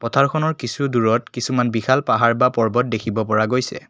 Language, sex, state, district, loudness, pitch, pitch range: Assamese, male, Assam, Kamrup Metropolitan, -19 LUFS, 120 Hz, 115-130 Hz